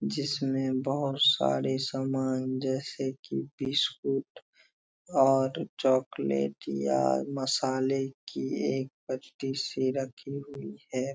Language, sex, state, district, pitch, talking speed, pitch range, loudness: Hindi, male, Bihar, Darbhanga, 135 Hz, 95 wpm, 130-135 Hz, -30 LUFS